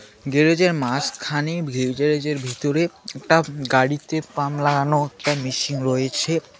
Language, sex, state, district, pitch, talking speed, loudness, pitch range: Bengali, male, West Bengal, Alipurduar, 145 Hz, 90 wpm, -21 LUFS, 135-155 Hz